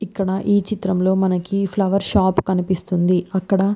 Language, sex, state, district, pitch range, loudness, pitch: Telugu, female, Andhra Pradesh, Visakhapatnam, 185-195 Hz, -19 LUFS, 190 Hz